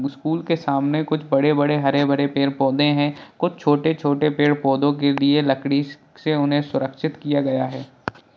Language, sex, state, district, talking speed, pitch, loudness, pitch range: Hindi, male, Bihar, Jahanabad, 150 wpm, 145 Hz, -20 LUFS, 140-150 Hz